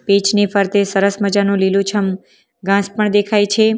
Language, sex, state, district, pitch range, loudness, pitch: Gujarati, female, Gujarat, Valsad, 195-205 Hz, -15 LUFS, 200 Hz